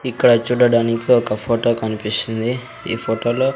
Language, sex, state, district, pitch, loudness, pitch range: Telugu, male, Andhra Pradesh, Sri Satya Sai, 115 Hz, -18 LUFS, 115-125 Hz